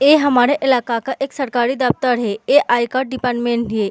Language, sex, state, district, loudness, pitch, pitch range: Hindi, female, Bihar, Samastipur, -17 LUFS, 250 Hz, 240-270 Hz